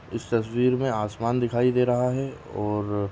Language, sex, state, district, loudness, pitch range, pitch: Kumaoni, male, Uttarakhand, Tehri Garhwal, -25 LUFS, 105-125 Hz, 120 Hz